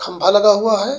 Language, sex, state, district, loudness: Bhojpuri, male, Uttar Pradesh, Gorakhpur, -14 LUFS